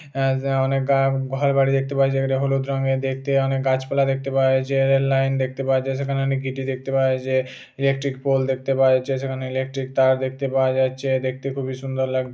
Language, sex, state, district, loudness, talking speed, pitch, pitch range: Bengali, male, Jharkhand, Jamtara, -21 LUFS, 220 wpm, 135 Hz, 130-135 Hz